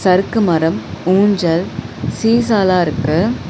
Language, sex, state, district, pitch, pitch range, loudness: Tamil, female, Tamil Nadu, Chennai, 180 Hz, 160-200 Hz, -15 LUFS